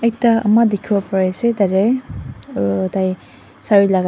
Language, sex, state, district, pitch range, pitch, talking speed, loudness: Nagamese, female, Nagaland, Dimapur, 190-230 Hz, 200 Hz, 130 wpm, -17 LUFS